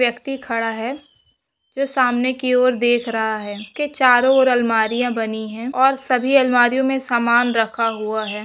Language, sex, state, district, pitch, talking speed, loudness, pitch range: Hindi, female, West Bengal, Purulia, 245 Hz, 170 wpm, -18 LUFS, 225-260 Hz